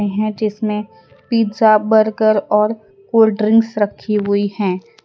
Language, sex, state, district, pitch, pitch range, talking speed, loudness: Hindi, female, Gujarat, Valsad, 215 Hz, 205-220 Hz, 120 wpm, -16 LUFS